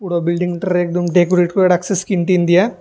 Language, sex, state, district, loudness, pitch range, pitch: Bengali, male, Tripura, West Tripura, -16 LUFS, 175-185 Hz, 180 Hz